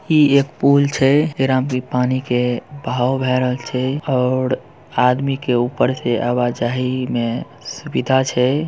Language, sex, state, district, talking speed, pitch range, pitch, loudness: Hindi, male, Bihar, Purnia, 160 wpm, 125-135 Hz, 130 Hz, -18 LUFS